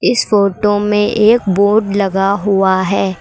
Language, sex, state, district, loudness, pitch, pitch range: Hindi, female, Uttar Pradesh, Lucknow, -13 LUFS, 200 Hz, 195-210 Hz